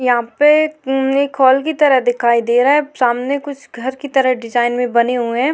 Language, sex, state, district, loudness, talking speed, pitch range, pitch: Hindi, female, Maharashtra, Chandrapur, -15 LUFS, 225 wpm, 245-285 Hz, 260 Hz